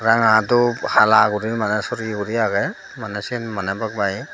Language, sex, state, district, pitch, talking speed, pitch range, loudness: Chakma, female, Tripura, Dhalai, 110 Hz, 180 wpm, 105-115 Hz, -19 LUFS